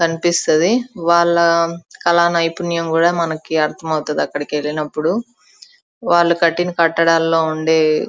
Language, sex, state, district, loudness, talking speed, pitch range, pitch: Telugu, female, Andhra Pradesh, Chittoor, -16 LUFS, 105 wpm, 160-170 Hz, 170 Hz